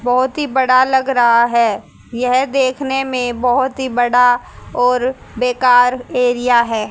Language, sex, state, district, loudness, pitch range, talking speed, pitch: Hindi, female, Haryana, Jhajjar, -15 LUFS, 245-260 Hz, 140 wpm, 250 Hz